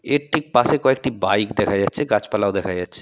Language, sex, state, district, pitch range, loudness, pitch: Bengali, male, West Bengal, Purulia, 100-135 Hz, -19 LUFS, 105 Hz